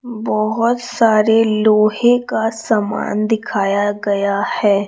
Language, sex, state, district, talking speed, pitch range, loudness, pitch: Hindi, female, Chhattisgarh, Raipur, 100 wpm, 205-225 Hz, -16 LUFS, 215 Hz